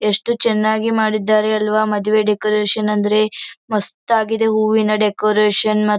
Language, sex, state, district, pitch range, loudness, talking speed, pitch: Kannada, female, Karnataka, Gulbarga, 210-220 Hz, -16 LUFS, 110 wpm, 215 Hz